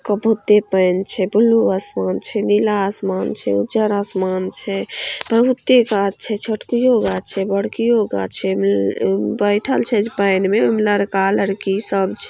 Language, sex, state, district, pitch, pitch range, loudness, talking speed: Maithili, female, Bihar, Samastipur, 200 Hz, 190-215 Hz, -17 LUFS, 155 wpm